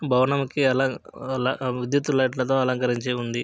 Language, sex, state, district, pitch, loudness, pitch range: Telugu, male, Andhra Pradesh, Krishna, 130 Hz, -24 LUFS, 125-135 Hz